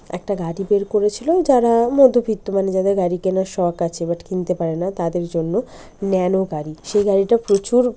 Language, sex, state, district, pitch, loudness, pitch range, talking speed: Bengali, female, West Bengal, North 24 Parganas, 190 Hz, -19 LUFS, 175-210 Hz, 165 wpm